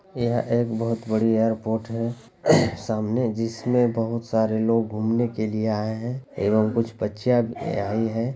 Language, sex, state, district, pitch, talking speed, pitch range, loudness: Hindi, male, Bihar, Lakhisarai, 115 Hz, 160 wpm, 110-120 Hz, -24 LUFS